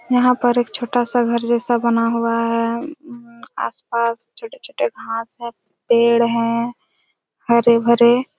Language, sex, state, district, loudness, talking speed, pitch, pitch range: Hindi, female, Chhattisgarh, Raigarh, -18 LUFS, 130 wpm, 235 Hz, 235-245 Hz